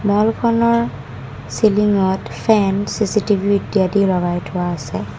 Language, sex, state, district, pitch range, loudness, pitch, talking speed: Assamese, female, Assam, Kamrup Metropolitan, 175-210 Hz, -17 LUFS, 200 Hz, 115 wpm